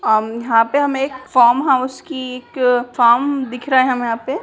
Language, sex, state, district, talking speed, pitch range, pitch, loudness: Hindi, female, Bihar, Jamui, 190 wpm, 240-270 Hz, 255 Hz, -16 LUFS